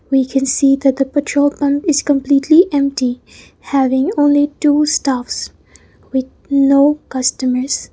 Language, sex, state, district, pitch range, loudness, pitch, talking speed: English, female, Mizoram, Aizawl, 265-290 Hz, -15 LUFS, 275 Hz, 130 wpm